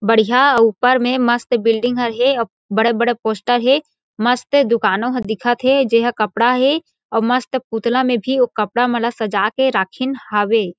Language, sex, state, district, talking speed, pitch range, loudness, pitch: Chhattisgarhi, female, Chhattisgarh, Jashpur, 180 wpm, 225-255 Hz, -16 LUFS, 240 Hz